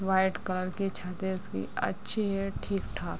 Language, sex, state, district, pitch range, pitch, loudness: Hindi, female, Bihar, Madhepura, 185-195 Hz, 190 Hz, -31 LUFS